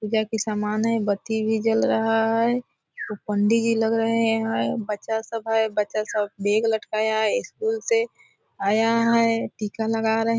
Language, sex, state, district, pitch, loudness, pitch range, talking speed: Hindi, female, Bihar, Purnia, 225 Hz, -23 LUFS, 215-230 Hz, 190 wpm